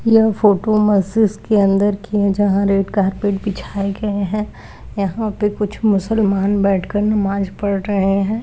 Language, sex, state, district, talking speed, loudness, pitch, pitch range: Hindi, female, Uttarakhand, Uttarkashi, 165 wpm, -17 LUFS, 205 Hz, 195-210 Hz